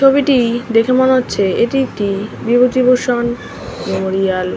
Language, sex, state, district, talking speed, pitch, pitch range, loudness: Bengali, female, West Bengal, North 24 Parganas, 120 wpm, 240 Hz, 205-255 Hz, -14 LUFS